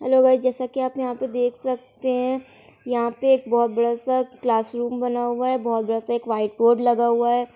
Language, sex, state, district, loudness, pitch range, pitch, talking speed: Hindi, female, Bihar, East Champaran, -22 LUFS, 235-255 Hz, 245 Hz, 220 wpm